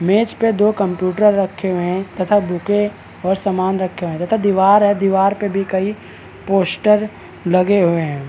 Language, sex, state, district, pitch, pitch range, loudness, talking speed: Hindi, male, Bihar, Kishanganj, 195 Hz, 185-205 Hz, -17 LUFS, 180 wpm